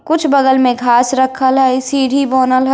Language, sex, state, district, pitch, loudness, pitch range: Hindi, female, Bihar, Darbhanga, 260 Hz, -12 LUFS, 255-270 Hz